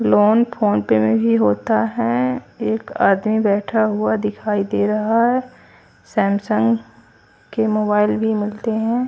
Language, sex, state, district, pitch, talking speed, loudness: Hindi, female, Haryana, Charkhi Dadri, 205 Hz, 140 wpm, -18 LUFS